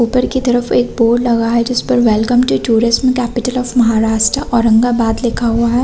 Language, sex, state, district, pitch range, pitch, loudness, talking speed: Hindi, female, Chhattisgarh, Rajnandgaon, 230-245 Hz, 240 Hz, -13 LUFS, 195 wpm